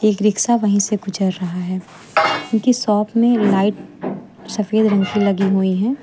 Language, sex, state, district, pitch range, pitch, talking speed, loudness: Hindi, female, Uttar Pradesh, Lucknow, 195-220 Hz, 205 Hz, 170 wpm, -17 LUFS